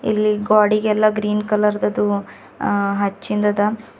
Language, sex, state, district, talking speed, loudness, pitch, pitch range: Kannada, female, Karnataka, Bidar, 90 wpm, -18 LUFS, 210 Hz, 200-215 Hz